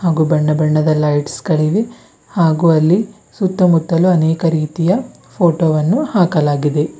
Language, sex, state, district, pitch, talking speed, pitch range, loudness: Kannada, female, Karnataka, Bidar, 165 Hz, 110 wpm, 155-180 Hz, -15 LUFS